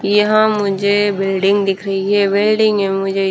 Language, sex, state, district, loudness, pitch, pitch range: Hindi, female, Haryana, Rohtak, -15 LUFS, 200 Hz, 195-205 Hz